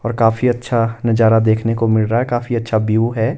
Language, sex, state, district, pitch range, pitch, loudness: Hindi, male, Himachal Pradesh, Shimla, 110-120 Hz, 115 Hz, -16 LUFS